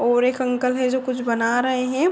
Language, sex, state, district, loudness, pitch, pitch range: Hindi, female, Uttar Pradesh, Deoria, -21 LUFS, 255 Hz, 245-255 Hz